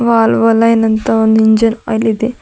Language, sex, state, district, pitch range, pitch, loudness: Kannada, female, Karnataka, Bidar, 220-230 Hz, 225 Hz, -11 LUFS